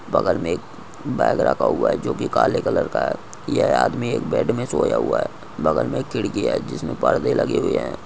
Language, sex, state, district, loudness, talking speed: Hindi, male, Goa, North and South Goa, -21 LUFS, 240 wpm